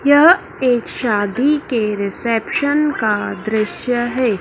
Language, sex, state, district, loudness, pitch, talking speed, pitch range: Hindi, female, Madhya Pradesh, Dhar, -17 LUFS, 240 Hz, 110 wpm, 215-285 Hz